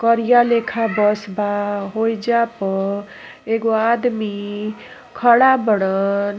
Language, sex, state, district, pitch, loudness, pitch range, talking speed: Bhojpuri, female, Uttar Pradesh, Ghazipur, 220 Hz, -18 LUFS, 205-235 Hz, 95 wpm